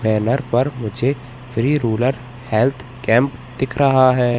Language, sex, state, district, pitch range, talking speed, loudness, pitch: Hindi, male, Madhya Pradesh, Katni, 120-130 Hz, 135 wpm, -19 LUFS, 125 Hz